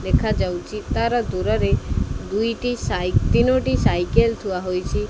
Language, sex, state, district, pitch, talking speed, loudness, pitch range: Odia, male, Odisha, Khordha, 210 Hz, 115 wpm, -21 LUFS, 175-230 Hz